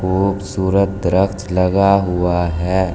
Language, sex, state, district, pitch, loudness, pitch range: Hindi, male, Delhi, New Delhi, 95 Hz, -17 LUFS, 90-100 Hz